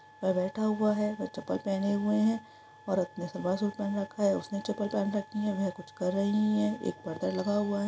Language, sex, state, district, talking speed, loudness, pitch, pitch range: Hindi, female, Bihar, East Champaran, 235 wpm, -31 LUFS, 205 Hz, 195-215 Hz